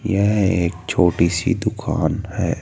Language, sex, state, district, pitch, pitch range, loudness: Hindi, male, Rajasthan, Jaipur, 100 Hz, 90-110 Hz, -19 LUFS